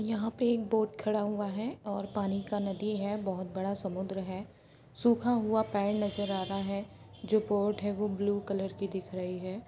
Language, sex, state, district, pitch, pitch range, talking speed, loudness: Hindi, female, Jharkhand, Jamtara, 205 Hz, 195-215 Hz, 205 wpm, -33 LUFS